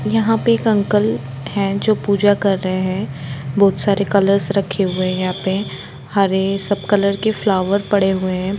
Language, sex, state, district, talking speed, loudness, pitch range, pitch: Hindi, female, Jharkhand, Jamtara, 190 wpm, -17 LUFS, 185-205 Hz, 200 Hz